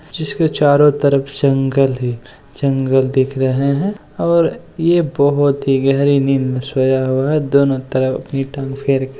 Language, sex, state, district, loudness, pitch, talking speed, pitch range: Hindi, male, Bihar, East Champaran, -16 LUFS, 140 Hz, 165 wpm, 135-145 Hz